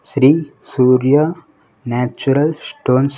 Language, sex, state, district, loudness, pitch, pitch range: Telugu, male, Andhra Pradesh, Sri Satya Sai, -15 LUFS, 135 Hz, 125-150 Hz